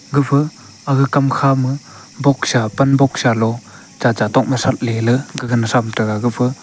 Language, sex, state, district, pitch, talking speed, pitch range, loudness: Wancho, male, Arunachal Pradesh, Longding, 125 Hz, 155 wpm, 115-140 Hz, -16 LUFS